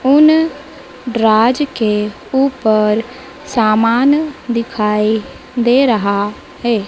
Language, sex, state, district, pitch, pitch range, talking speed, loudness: Hindi, female, Madhya Pradesh, Dhar, 240 Hz, 215-270 Hz, 80 wpm, -14 LUFS